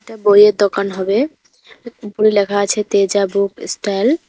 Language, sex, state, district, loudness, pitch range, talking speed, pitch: Bengali, female, West Bengal, Cooch Behar, -15 LUFS, 200-225 Hz, 155 wpm, 205 Hz